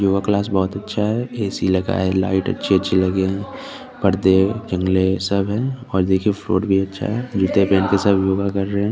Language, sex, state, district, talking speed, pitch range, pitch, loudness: Hindi, male, Chandigarh, Chandigarh, 215 wpm, 95-105 Hz, 100 Hz, -19 LUFS